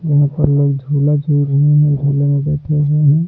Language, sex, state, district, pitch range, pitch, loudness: Hindi, male, Punjab, Pathankot, 145-150 Hz, 145 Hz, -14 LUFS